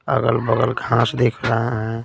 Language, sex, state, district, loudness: Hindi, male, Bihar, Patna, -19 LUFS